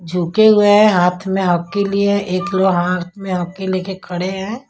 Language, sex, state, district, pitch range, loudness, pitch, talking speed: Hindi, female, Punjab, Kapurthala, 180-200 Hz, -16 LUFS, 190 Hz, 190 wpm